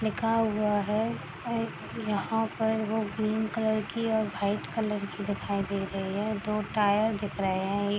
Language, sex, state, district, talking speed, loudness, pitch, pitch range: Hindi, female, Bihar, East Champaran, 190 wpm, -29 LUFS, 210 Hz, 200-220 Hz